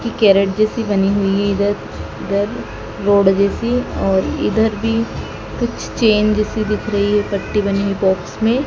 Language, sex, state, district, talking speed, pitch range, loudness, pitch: Hindi, female, Madhya Pradesh, Dhar, 165 wpm, 195-215 Hz, -17 LUFS, 205 Hz